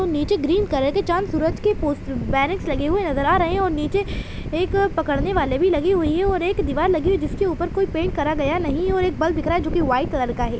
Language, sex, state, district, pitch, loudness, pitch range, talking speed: Hindi, female, Chhattisgarh, Bilaspur, 345 Hz, -21 LUFS, 300-380 Hz, 270 wpm